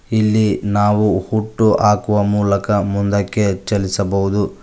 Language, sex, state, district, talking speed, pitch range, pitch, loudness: Kannada, male, Karnataka, Koppal, 90 wpm, 100-105 Hz, 105 Hz, -16 LUFS